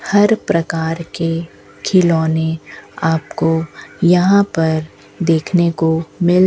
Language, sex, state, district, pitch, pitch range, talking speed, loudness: Hindi, female, Rajasthan, Bikaner, 165 Hz, 160-180 Hz, 100 wpm, -16 LUFS